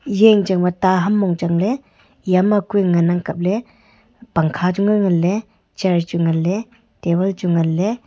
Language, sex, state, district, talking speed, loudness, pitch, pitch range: Wancho, female, Arunachal Pradesh, Longding, 180 wpm, -18 LUFS, 185 Hz, 175-210 Hz